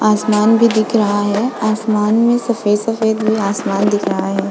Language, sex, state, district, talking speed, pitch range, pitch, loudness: Hindi, female, Goa, North and South Goa, 185 wpm, 205-225 Hz, 215 Hz, -15 LUFS